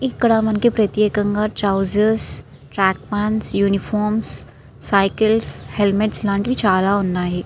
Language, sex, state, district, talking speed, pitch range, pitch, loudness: Telugu, female, Andhra Pradesh, Srikakulam, 90 wpm, 195-220 Hz, 210 Hz, -18 LUFS